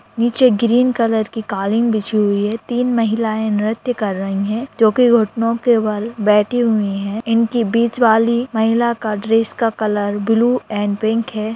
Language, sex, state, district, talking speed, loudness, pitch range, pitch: Hindi, female, Jharkhand, Sahebganj, 175 wpm, -17 LUFS, 215-235 Hz, 225 Hz